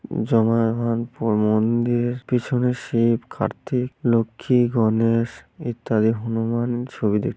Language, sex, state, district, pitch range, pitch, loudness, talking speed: Bengali, male, West Bengal, Malda, 115-120 Hz, 115 Hz, -22 LUFS, 100 wpm